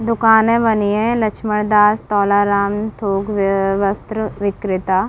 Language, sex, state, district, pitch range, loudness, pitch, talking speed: Hindi, female, Chhattisgarh, Bilaspur, 200-220 Hz, -16 LUFS, 210 Hz, 105 wpm